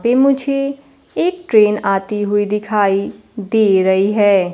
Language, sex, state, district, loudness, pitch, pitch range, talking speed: Hindi, female, Bihar, Kaimur, -15 LUFS, 210 Hz, 200-255 Hz, 130 wpm